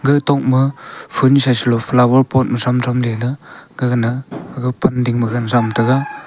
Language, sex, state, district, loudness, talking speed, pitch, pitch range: Wancho, male, Arunachal Pradesh, Longding, -16 LUFS, 180 wpm, 125 Hz, 120-130 Hz